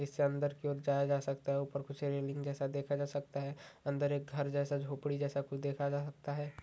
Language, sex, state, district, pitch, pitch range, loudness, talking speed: Hindi, male, Chhattisgarh, Raigarh, 140 Hz, 140-145 Hz, -37 LUFS, 245 wpm